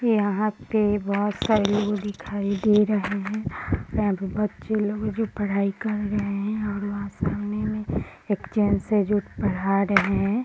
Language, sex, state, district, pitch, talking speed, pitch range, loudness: Hindi, female, Bihar, Gaya, 205 Hz, 165 wpm, 200-210 Hz, -25 LUFS